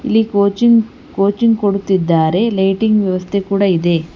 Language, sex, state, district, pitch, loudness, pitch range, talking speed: Kannada, female, Karnataka, Bangalore, 200 Hz, -14 LUFS, 190-225 Hz, 115 wpm